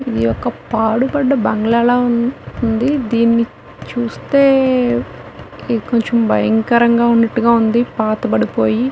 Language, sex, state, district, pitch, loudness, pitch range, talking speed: Telugu, female, Telangana, Nalgonda, 235 Hz, -15 LUFS, 225-245 Hz, 80 wpm